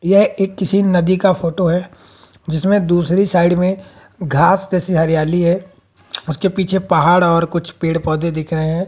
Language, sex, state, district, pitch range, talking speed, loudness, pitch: Hindi, female, Haryana, Jhajjar, 165-190 Hz, 170 wpm, -15 LUFS, 175 Hz